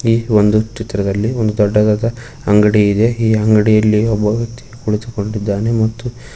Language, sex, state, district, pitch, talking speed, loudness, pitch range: Kannada, male, Karnataka, Koppal, 110 Hz, 125 wpm, -15 LUFS, 105-115 Hz